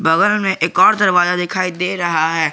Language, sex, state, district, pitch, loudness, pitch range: Hindi, male, Jharkhand, Garhwa, 180 Hz, -15 LUFS, 165-190 Hz